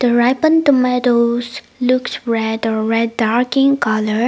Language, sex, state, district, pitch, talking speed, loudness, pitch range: English, female, Nagaland, Dimapur, 240 Hz, 125 wpm, -16 LUFS, 225-255 Hz